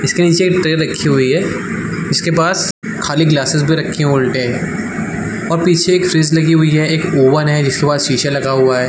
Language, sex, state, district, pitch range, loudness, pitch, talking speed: Hindi, male, Chhattisgarh, Balrampur, 140-180 Hz, -14 LUFS, 160 Hz, 215 wpm